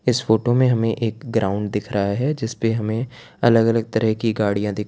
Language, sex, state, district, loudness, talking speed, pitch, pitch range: Hindi, male, Gujarat, Valsad, -20 LUFS, 235 wpm, 115 Hz, 110-120 Hz